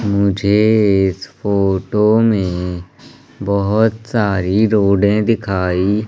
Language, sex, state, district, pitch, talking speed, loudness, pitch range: Hindi, male, Madhya Pradesh, Umaria, 100 Hz, 80 wpm, -15 LUFS, 95-110 Hz